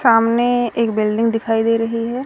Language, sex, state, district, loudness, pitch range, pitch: Hindi, female, Haryana, Rohtak, -17 LUFS, 225-235 Hz, 230 Hz